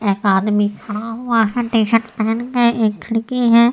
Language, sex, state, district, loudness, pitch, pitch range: Hindi, female, Uttar Pradesh, Etah, -17 LUFS, 225 Hz, 210-235 Hz